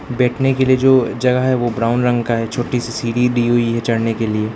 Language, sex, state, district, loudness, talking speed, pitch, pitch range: Hindi, male, Arunachal Pradesh, Lower Dibang Valley, -16 LUFS, 265 wpm, 120 Hz, 115-125 Hz